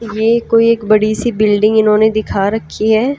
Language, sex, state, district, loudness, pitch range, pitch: Hindi, female, Haryana, Jhajjar, -13 LUFS, 215-230 Hz, 220 Hz